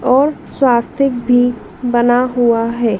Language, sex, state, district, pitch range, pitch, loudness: Hindi, female, Madhya Pradesh, Dhar, 235-255 Hz, 245 Hz, -14 LUFS